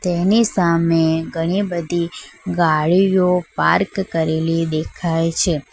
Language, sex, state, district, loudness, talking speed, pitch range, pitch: Gujarati, female, Gujarat, Valsad, -18 LUFS, 95 wpm, 165-180 Hz, 170 Hz